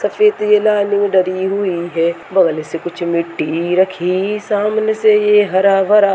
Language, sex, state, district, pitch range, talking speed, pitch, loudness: Hindi, male, Chhattisgarh, Rajnandgaon, 175-210 Hz, 155 wpm, 195 Hz, -15 LUFS